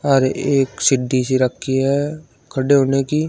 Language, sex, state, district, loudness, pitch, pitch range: Hindi, male, Uttar Pradesh, Shamli, -18 LUFS, 135 Hz, 130-140 Hz